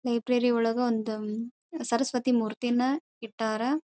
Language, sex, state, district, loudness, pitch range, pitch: Kannada, female, Karnataka, Dharwad, -28 LUFS, 230-250 Hz, 240 Hz